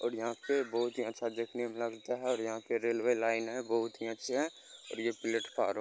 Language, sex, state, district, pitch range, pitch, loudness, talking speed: Hindi, male, Bihar, Gopalganj, 115-120 Hz, 115 Hz, -35 LUFS, 245 wpm